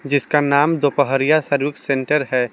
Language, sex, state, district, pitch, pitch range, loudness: Hindi, male, Jharkhand, Palamu, 145 Hz, 140-150 Hz, -18 LUFS